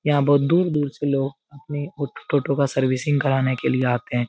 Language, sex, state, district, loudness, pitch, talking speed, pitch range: Hindi, male, Bihar, Jahanabad, -22 LUFS, 140 Hz, 195 wpm, 135-145 Hz